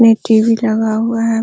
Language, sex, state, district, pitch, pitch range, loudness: Hindi, female, Bihar, Araria, 225 Hz, 220-230 Hz, -13 LUFS